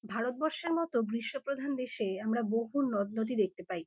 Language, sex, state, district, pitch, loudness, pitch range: Bengali, female, West Bengal, North 24 Parganas, 230 Hz, -33 LUFS, 215-275 Hz